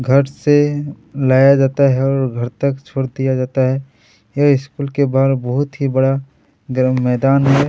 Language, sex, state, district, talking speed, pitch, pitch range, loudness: Hindi, male, Chhattisgarh, Kabirdham, 170 wpm, 135 Hz, 130-140 Hz, -16 LUFS